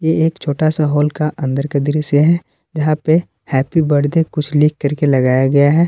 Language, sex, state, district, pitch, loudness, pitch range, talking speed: Hindi, male, Jharkhand, Palamu, 150 Hz, -15 LUFS, 145-160 Hz, 205 wpm